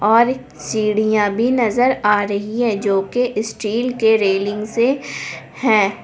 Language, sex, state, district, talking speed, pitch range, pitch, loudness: Hindi, female, Jharkhand, Palamu, 130 wpm, 205-240 Hz, 215 Hz, -18 LUFS